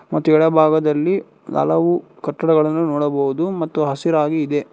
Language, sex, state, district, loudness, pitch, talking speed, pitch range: Kannada, male, Karnataka, Bangalore, -18 LUFS, 155 Hz, 100 wpm, 145-160 Hz